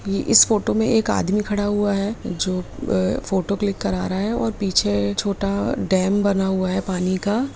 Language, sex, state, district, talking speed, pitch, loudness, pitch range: Hindi, female, Bihar, Jamui, 200 wpm, 200 Hz, -21 LUFS, 185-205 Hz